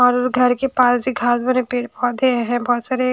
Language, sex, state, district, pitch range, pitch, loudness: Hindi, female, Haryana, Jhajjar, 245-255 Hz, 250 Hz, -18 LUFS